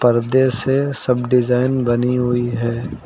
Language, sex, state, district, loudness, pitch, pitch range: Hindi, male, Uttar Pradesh, Lucknow, -18 LUFS, 125 Hz, 120-130 Hz